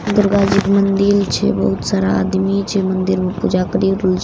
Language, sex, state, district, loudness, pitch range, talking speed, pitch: Maithili, female, Bihar, Katihar, -16 LUFS, 185-200 Hz, 240 wpm, 195 Hz